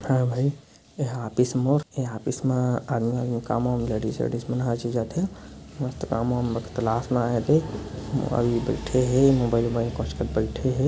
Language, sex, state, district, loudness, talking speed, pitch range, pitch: Chhattisgarhi, male, Chhattisgarh, Bilaspur, -25 LUFS, 130 wpm, 115-130 Hz, 125 Hz